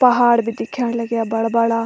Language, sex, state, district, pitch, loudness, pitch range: Garhwali, female, Uttarakhand, Tehri Garhwal, 230 Hz, -18 LUFS, 230-240 Hz